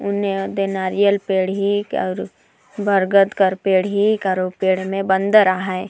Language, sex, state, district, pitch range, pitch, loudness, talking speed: Sadri, female, Chhattisgarh, Jashpur, 190-200 Hz, 195 Hz, -18 LUFS, 155 wpm